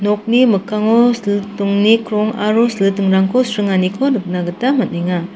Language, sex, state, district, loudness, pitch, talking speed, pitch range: Garo, female, Meghalaya, South Garo Hills, -15 LUFS, 210 Hz, 110 wpm, 195-230 Hz